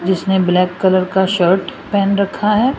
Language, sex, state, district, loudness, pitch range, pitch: Hindi, female, Rajasthan, Jaipur, -15 LUFS, 185-200 Hz, 190 Hz